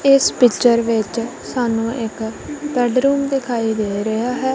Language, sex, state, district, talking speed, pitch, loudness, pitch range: Punjabi, female, Punjab, Kapurthala, 130 wpm, 240 Hz, -18 LUFS, 225-260 Hz